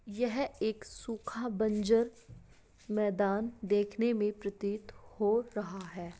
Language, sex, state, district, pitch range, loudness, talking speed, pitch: Hindi, female, Bihar, Madhepura, 205-230 Hz, -33 LUFS, 105 wpm, 215 Hz